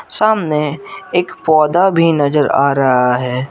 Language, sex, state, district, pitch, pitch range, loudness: Hindi, male, Jharkhand, Garhwa, 150 Hz, 140-180 Hz, -14 LUFS